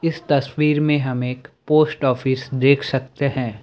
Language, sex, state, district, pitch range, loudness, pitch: Hindi, male, Assam, Sonitpur, 130-150 Hz, -19 LUFS, 140 Hz